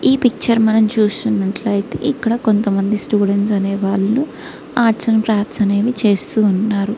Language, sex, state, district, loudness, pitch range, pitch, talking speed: Telugu, female, Andhra Pradesh, Srikakulam, -16 LUFS, 200-230 Hz, 215 Hz, 130 wpm